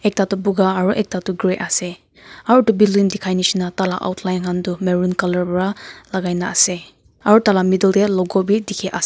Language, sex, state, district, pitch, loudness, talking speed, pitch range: Nagamese, female, Nagaland, Kohima, 190 Hz, -17 LUFS, 190 wpm, 180-205 Hz